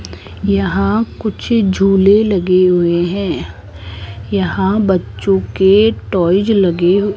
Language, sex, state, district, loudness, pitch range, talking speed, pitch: Hindi, female, Rajasthan, Jaipur, -14 LUFS, 175-200 Hz, 110 wpm, 190 Hz